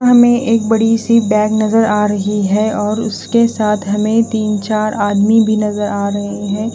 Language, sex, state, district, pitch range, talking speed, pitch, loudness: Hindi, female, Bihar, Katihar, 210-225 Hz, 185 wpm, 215 Hz, -14 LUFS